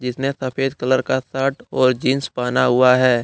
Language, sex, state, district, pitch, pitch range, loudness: Hindi, male, Jharkhand, Deoghar, 130 Hz, 125-135 Hz, -18 LUFS